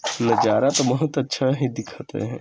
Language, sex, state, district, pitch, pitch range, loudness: Chhattisgarhi, male, Chhattisgarh, Sarguja, 135 Hz, 125-140 Hz, -21 LUFS